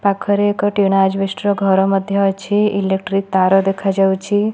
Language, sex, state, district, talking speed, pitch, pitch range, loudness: Odia, female, Odisha, Malkangiri, 145 wpm, 195 Hz, 195-205 Hz, -16 LUFS